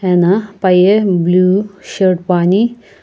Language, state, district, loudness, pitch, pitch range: Sumi, Nagaland, Kohima, -13 LUFS, 185 Hz, 180-200 Hz